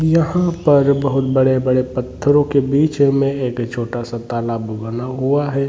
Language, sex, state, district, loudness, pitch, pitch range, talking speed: Hindi, male, Jharkhand, Sahebganj, -17 LUFS, 135 Hz, 120-145 Hz, 170 wpm